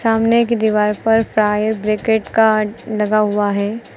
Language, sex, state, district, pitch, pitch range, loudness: Hindi, female, Uttar Pradesh, Lucknow, 215 Hz, 210-225 Hz, -16 LUFS